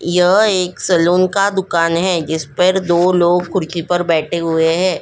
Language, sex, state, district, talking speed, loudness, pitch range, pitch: Hindi, female, Goa, North and South Goa, 190 wpm, -15 LUFS, 170-185 Hz, 175 Hz